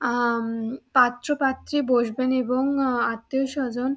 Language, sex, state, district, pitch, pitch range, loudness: Bengali, female, West Bengal, Dakshin Dinajpur, 255 Hz, 240-270 Hz, -24 LUFS